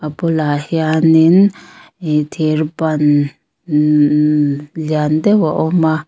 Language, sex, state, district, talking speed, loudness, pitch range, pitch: Mizo, female, Mizoram, Aizawl, 130 wpm, -14 LUFS, 150-160 Hz, 155 Hz